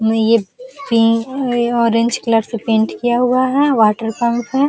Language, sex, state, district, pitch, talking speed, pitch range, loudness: Hindi, female, Uttar Pradesh, Jalaun, 235 Hz, 140 wpm, 225-250 Hz, -15 LUFS